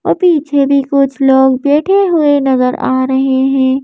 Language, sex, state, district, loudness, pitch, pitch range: Hindi, female, Madhya Pradesh, Bhopal, -11 LUFS, 275 Hz, 265-290 Hz